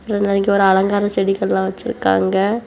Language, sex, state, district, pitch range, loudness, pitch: Tamil, female, Tamil Nadu, Kanyakumari, 190-205 Hz, -17 LUFS, 195 Hz